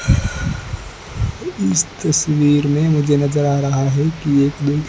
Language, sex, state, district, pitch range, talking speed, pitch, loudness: Hindi, male, Rajasthan, Bikaner, 140-150 Hz, 135 wpm, 145 Hz, -17 LUFS